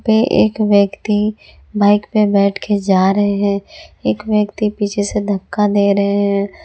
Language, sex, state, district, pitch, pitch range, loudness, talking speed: Hindi, female, Jharkhand, Garhwa, 205 Hz, 200-210 Hz, -15 LUFS, 160 wpm